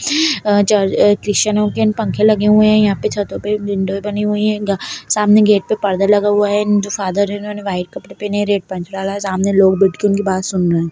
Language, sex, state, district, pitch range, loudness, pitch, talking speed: Kumaoni, female, Uttarakhand, Tehri Garhwal, 195-210 Hz, -15 LUFS, 205 Hz, 235 wpm